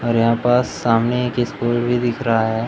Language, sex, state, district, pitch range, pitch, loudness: Hindi, male, Madhya Pradesh, Umaria, 115-120 Hz, 120 Hz, -18 LUFS